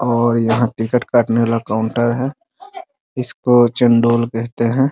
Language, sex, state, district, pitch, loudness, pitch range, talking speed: Hindi, male, Bihar, Muzaffarpur, 120 Hz, -16 LUFS, 115-130 Hz, 135 wpm